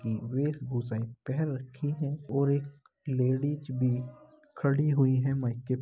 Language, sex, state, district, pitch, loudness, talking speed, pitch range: Hindi, male, Uttar Pradesh, Muzaffarnagar, 135 Hz, -30 LUFS, 135 wpm, 125-145 Hz